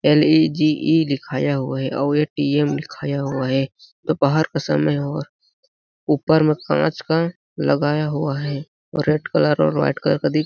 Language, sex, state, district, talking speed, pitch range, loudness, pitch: Hindi, male, Chhattisgarh, Balrampur, 160 wpm, 140-155 Hz, -20 LUFS, 150 Hz